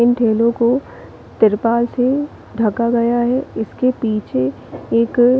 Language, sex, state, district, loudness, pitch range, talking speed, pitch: Hindi, female, Chhattisgarh, Bilaspur, -17 LUFS, 225-245 Hz, 120 wpm, 235 Hz